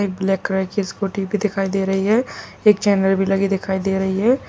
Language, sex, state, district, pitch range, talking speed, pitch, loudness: Hindi, male, Uttar Pradesh, Lalitpur, 195-205 Hz, 255 wpm, 195 Hz, -19 LUFS